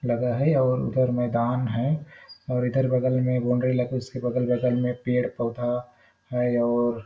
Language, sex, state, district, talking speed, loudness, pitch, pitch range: Hindi, male, Chhattisgarh, Balrampur, 180 wpm, -25 LUFS, 125 Hz, 120-130 Hz